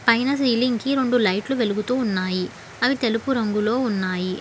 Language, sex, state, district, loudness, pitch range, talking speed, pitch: Telugu, female, Telangana, Hyderabad, -22 LUFS, 190-250 Hz, 165 wpm, 230 Hz